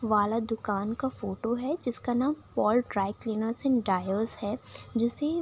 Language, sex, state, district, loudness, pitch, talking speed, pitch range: Hindi, female, Bihar, Saharsa, -29 LUFS, 225 Hz, 165 wpm, 210-250 Hz